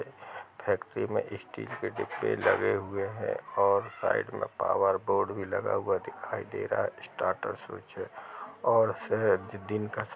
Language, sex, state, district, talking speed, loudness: Hindi, male, Chhattisgarh, Rajnandgaon, 165 wpm, -31 LUFS